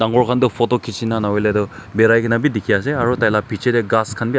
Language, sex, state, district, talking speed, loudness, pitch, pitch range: Nagamese, male, Nagaland, Kohima, 230 wpm, -17 LUFS, 115 Hz, 105-125 Hz